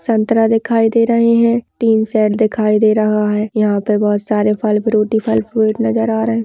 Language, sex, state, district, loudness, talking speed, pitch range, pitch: Hindi, female, Rajasthan, Nagaur, -14 LUFS, 225 wpm, 210-225 Hz, 220 Hz